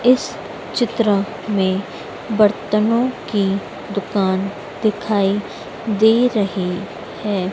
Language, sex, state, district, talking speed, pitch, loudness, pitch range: Hindi, female, Madhya Pradesh, Dhar, 80 wpm, 205 Hz, -19 LUFS, 195-220 Hz